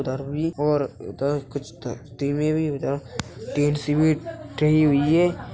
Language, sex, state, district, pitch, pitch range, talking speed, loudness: Hindi, male, Uttar Pradesh, Hamirpur, 145 Hz, 135-150 Hz, 75 wpm, -23 LUFS